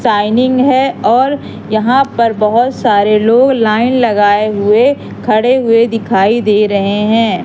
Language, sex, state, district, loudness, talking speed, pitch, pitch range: Hindi, female, Madhya Pradesh, Katni, -11 LUFS, 135 wpm, 225 Hz, 210-250 Hz